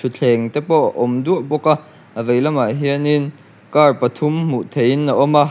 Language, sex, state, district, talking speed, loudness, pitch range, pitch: Mizo, male, Mizoram, Aizawl, 195 wpm, -17 LUFS, 125-150 Hz, 145 Hz